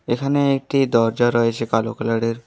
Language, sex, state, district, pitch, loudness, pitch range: Bengali, male, West Bengal, Alipurduar, 115 Hz, -19 LUFS, 115-135 Hz